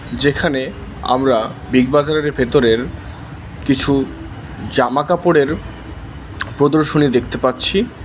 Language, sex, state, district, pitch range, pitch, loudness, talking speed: Bengali, male, West Bengal, Alipurduar, 120-145 Hz, 135 Hz, -16 LUFS, 65 wpm